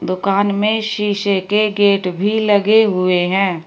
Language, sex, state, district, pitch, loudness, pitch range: Hindi, female, Uttar Pradesh, Shamli, 200 Hz, -15 LUFS, 185-210 Hz